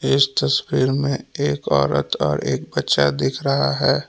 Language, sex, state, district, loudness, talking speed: Hindi, male, Jharkhand, Palamu, -20 LUFS, 160 wpm